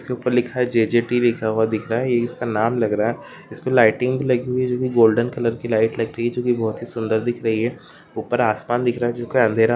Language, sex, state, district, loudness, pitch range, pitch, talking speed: Hindi, male, Rajasthan, Churu, -20 LUFS, 115-125 Hz, 120 Hz, 285 wpm